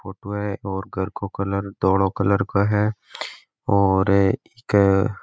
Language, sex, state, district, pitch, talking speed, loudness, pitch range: Marwari, male, Rajasthan, Nagaur, 100 Hz, 160 wpm, -21 LUFS, 95-105 Hz